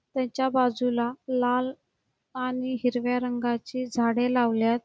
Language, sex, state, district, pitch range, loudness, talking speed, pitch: Marathi, female, Karnataka, Belgaum, 240-255 Hz, -27 LUFS, 100 wpm, 250 Hz